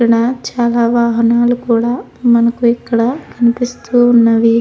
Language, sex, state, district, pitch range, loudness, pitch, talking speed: Telugu, female, Andhra Pradesh, Krishna, 235-245 Hz, -13 LUFS, 235 Hz, 105 wpm